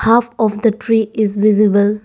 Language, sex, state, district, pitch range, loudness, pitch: English, female, Arunachal Pradesh, Lower Dibang Valley, 210-225 Hz, -14 LUFS, 215 Hz